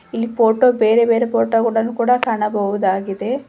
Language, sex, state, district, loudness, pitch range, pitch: Kannada, female, Karnataka, Koppal, -17 LUFS, 210-235 Hz, 230 Hz